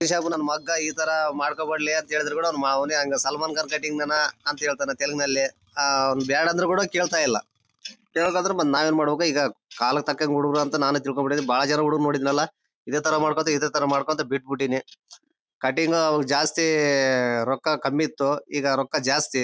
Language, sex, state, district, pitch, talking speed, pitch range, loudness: Kannada, male, Karnataka, Bellary, 150 Hz, 165 wpm, 140-155 Hz, -23 LUFS